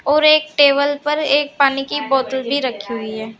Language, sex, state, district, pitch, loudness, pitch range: Hindi, female, Uttar Pradesh, Saharanpur, 280 Hz, -16 LUFS, 260-290 Hz